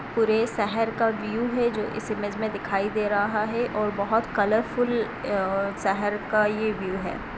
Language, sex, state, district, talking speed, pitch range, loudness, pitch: Hindi, female, Bihar, Sitamarhi, 170 wpm, 205-225 Hz, -25 LUFS, 215 Hz